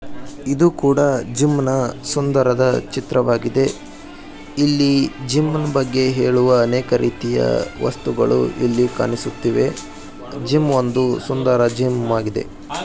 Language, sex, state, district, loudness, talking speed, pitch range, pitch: Kannada, male, Karnataka, Bijapur, -18 LUFS, 100 wpm, 125-140 Hz, 130 Hz